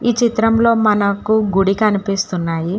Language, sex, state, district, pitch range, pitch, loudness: Telugu, female, Telangana, Hyderabad, 195-225 Hz, 205 Hz, -16 LUFS